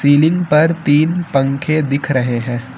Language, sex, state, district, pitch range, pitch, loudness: Hindi, male, Uttar Pradesh, Lucknow, 135-155 Hz, 145 Hz, -15 LUFS